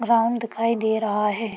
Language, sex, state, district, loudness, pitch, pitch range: Hindi, female, Uttar Pradesh, Deoria, -23 LUFS, 225 Hz, 215-230 Hz